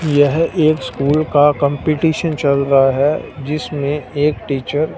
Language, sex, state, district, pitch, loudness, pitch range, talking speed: Hindi, male, Punjab, Fazilka, 145 Hz, -16 LUFS, 140-155 Hz, 145 wpm